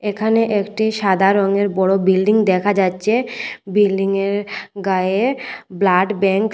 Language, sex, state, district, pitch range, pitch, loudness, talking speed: Bengali, female, Tripura, West Tripura, 190-215 Hz, 200 Hz, -17 LUFS, 120 wpm